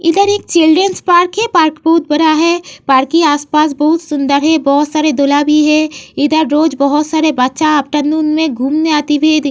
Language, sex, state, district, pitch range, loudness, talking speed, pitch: Hindi, female, Uttar Pradesh, Varanasi, 295-320 Hz, -12 LUFS, 200 wpm, 310 Hz